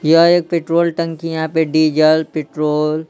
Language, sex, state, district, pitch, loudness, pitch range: Hindi, male, Bihar, Patna, 160 Hz, -15 LUFS, 155-165 Hz